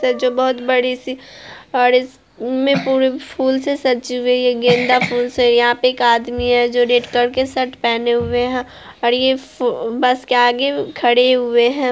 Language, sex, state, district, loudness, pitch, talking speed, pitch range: Hindi, female, Bihar, Araria, -16 LUFS, 250 Hz, 185 wpm, 245-260 Hz